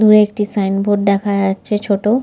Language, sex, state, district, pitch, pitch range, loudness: Bengali, female, West Bengal, Kolkata, 205 Hz, 200-210 Hz, -16 LUFS